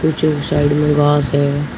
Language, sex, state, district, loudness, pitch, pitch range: Hindi, male, Uttar Pradesh, Shamli, -15 LUFS, 145 Hz, 145-150 Hz